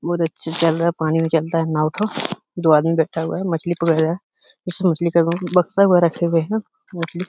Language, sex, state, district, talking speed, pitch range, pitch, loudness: Hindi, male, Uttar Pradesh, Hamirpur, 220 wpm, 165-180 Hz, 170 Hz, -19 LUFS